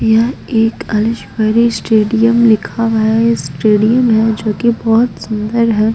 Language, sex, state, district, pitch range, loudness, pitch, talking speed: Hindi, female, Bihar, Patna, 215-230 Hz, -13 LUFS, 225 Hz, 140 wpm